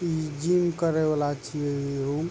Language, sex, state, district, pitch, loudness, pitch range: Maithili, male, Bihar, Supaul, 155 Hz, -27 LUFS, 145-165 Hz